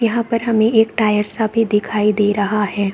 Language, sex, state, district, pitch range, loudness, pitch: Hindi, female, Bihar, Saran, 210-225 Hz, -16 LUFS, 215 Hz